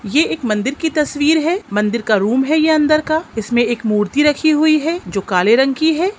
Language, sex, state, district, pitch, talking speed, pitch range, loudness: Hindi, female, Bihar, Sitamarhi, 290 Hz, 230 wpm, 220-315 Hz, -15 LUFS